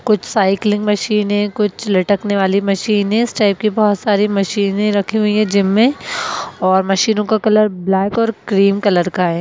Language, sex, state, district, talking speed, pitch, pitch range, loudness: Hindi, female, Bihar, Gaya, 180 wpm, 205 Hz, 195-215 Hz, -15 LUFS